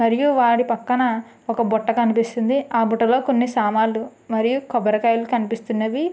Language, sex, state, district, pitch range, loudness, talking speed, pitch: Telugu, female, Andhra Pradesh, Srikakulam, 225-250 Hz, -20 LUFS, 125 wpm, 235 Hz